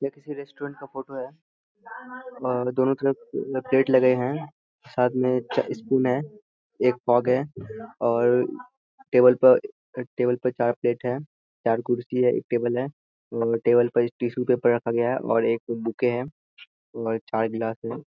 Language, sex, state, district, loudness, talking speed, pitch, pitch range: Hindi, male, Bihar, Purnia, -24 LUFS, 155 wpm, 125 Hz, 120-135 Hz